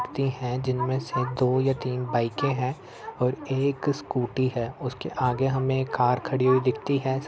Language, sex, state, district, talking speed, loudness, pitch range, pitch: Hindi, male, Uttar Pradesh, Etah, 180 wpm, -26 LUFS, 125-135 Hz, 130 Hz